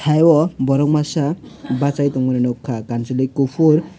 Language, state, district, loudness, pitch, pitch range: Kokborok, Tripura, West Tripura, -18 LUFS, 140 Hz, 130-150 Hz